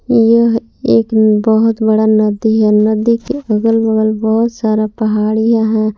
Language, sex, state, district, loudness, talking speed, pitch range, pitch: Hindi, female, Jharkhand, Palamu, -12 LUFS, 140 wpm, 215-230 Hz, 220 Hz